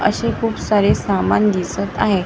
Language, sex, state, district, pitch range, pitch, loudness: Marathi, female, Maharashtra, Gondia, 195-210 Hz, 205 Hz, -18 LUFS